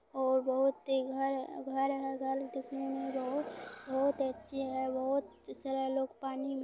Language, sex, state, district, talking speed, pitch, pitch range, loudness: Maithili, female, Bihar, Supaul, 180 wpm, 270 Hz, 265-270 Hz, -35 LUFS